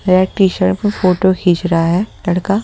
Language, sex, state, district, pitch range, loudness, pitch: Hindi, male, Delhi, New Delhi, 180-195 Hz, -14 LUFS, 185 Hz